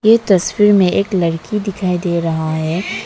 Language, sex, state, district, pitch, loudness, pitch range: Hindi, female, Arunachal Pradesh, Papum Pare, 185 Hz, -15 LUFS, 170-205 Hz